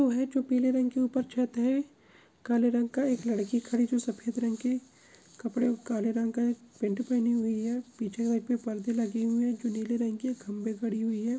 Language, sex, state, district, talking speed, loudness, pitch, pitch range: Hindi, female, Andhra Pradesh, Krishna, 230 wpm, -30 LUFS, 235 Hz, 230-250 Hz